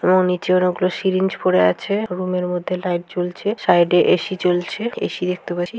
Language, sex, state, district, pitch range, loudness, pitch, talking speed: Bengali, female, West Bengal, Jhargram, 180-190 Hz, -19 LUFS, 180 Hz, 175 wpm